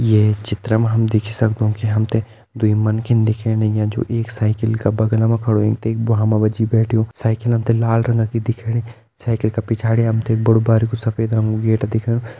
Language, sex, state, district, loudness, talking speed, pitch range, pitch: Kumaoni, male, Uttarakhand, Tehri Garhwal, -18 LUFS, 210 wpm, 110-115 Hz, 110 Hz